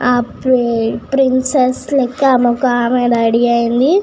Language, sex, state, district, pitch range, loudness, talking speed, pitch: Telugu, female, Telangana, Nalgonda, 240-260 Hz, -14 LUFS, 135 wpm, 250 Hz